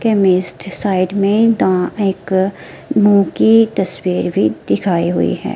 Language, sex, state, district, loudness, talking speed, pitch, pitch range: Hindi, female, Himachal Pradesh, Shimla, -15 LUFS, 120 wpm, 195 Hz, 185-210 Hz